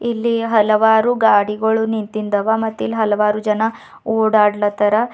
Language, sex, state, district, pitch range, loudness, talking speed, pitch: Kannada, female, Karnataka, Bidar, 210-225 Hz, -16 LUFS, 105 wpm, 220 Hz